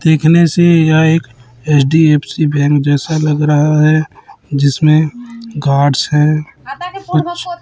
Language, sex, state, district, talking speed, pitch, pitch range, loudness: Hindi, male, Chhattisgarh, Raipur, 110 wpm, 155 Hz, 145-165 Hz, -12 LUFS